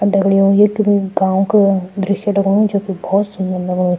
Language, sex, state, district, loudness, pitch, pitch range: Garhwali, female, Uttarakhand, Tehri Garhwal, -15 LUFS, 195 Hz, 190-200 Hz